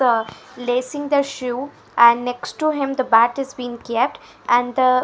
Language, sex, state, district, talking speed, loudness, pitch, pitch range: English, female, Punjab, Fazilka, 190 wpm, -19 LUFS, 250 Hz, 240-275 Hz